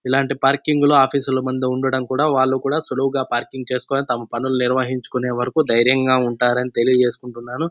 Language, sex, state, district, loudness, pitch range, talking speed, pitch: Telugu, male, Andhra Pradesh, Anantapur, -19 LUFS, 125-135 Hz, 165 wpm, 130 Hz